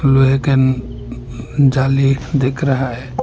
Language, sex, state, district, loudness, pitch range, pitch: Hindi, male, Assam, Hailakandi, -15 LUFS, 125-135 Hz, 135 Hz